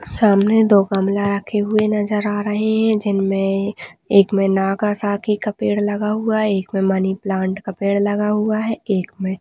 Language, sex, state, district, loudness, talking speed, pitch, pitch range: Hindi, female, West Bengal, Dakshin Dinajpur, -18 LUFS, 185 wpm, 205 Hz, 195-210 Hz